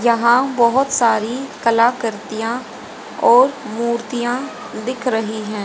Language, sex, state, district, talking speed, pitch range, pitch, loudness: Hindi, female, Haryana, Rohtak, 95 wpm, 225-250 Hz, 235 Hz, -17 LUFS